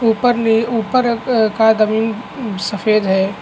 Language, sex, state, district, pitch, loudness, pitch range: Hindi, male, Chhattisgarh, Bastar, 220 Hz, -16 LUFS, 215-235 Hz